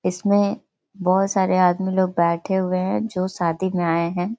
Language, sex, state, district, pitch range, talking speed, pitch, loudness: Hindi, female, Bihar, Jahanabad, 175-190 Hz, 180 wpm, 185 Hz, -21 LUFS